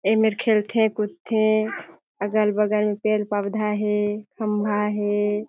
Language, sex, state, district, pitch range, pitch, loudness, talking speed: Chhattisgarhi, female, Chhattisgarh, Jashpur, 210-215 Hz, 210 Hz, -23 LUFS, 85 wpm